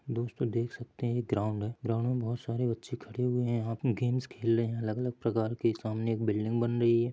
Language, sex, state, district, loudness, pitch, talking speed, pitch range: Hindi, male, Chhattisgarh, Bilaspur, -32 LUFS, 115 Hz, 250 wpm, 115-120 Hz